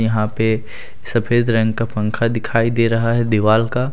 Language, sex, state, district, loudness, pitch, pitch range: Hindi, male, Jharkhand, Deoghar, -18 LUFS, 115 Hz, 110-115 Hz